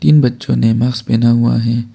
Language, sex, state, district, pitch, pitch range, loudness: Hindi, male, Arunachal Pradesh, Papum Pare, 120 Hz, 115-125 Hz, -13 LUFS